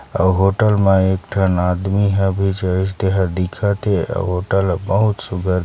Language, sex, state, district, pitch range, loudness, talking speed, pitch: Chhattisgarhi, male, Chhattisgarh, Sarguja, 95-100 Hz, -17 LUFS, 150 wpm, 95 Hz